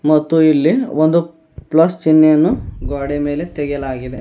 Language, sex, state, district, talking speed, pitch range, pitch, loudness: Kannada, male, Karnataka, Bidar, 115 wpm, 145-160 Hz, 155 Hz, -15 LUFS